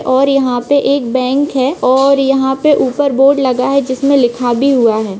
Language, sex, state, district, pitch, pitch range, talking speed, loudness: Hindi, female, Bihar, Vaishali, 265 Hz, 255-275 Hz, 205 wpm, -12 LUFS